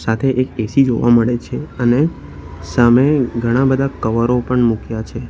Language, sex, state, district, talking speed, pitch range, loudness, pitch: Gujarati, male, Gujarat, Valsad, 160 wpm, 115-130 Hz, -16 LUFS, 120 Hz